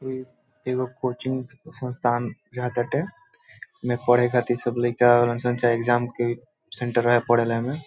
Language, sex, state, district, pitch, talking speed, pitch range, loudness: Bhojpuri, male, Bihar, Saran, 120 Hz, 70 wpm, 120-130 Hz, -24 LUFS